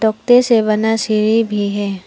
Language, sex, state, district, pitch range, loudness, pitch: Hindi, female, Arunachal Pradesh, Papum Pare, 210-225 Hz, -14 LUFS, 220 Hz